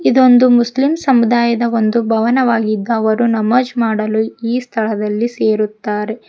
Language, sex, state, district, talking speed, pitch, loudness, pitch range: Kannada, female, Karnataka, Koppal, 105 wpm, 230 Hz, -14 LUFS, 220-240 Hz